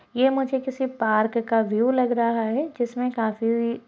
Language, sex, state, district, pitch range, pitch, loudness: Hindi, female, Chhattisgarh, Balrampur, 225-260 Hz, 235 Hz, -23 LUFS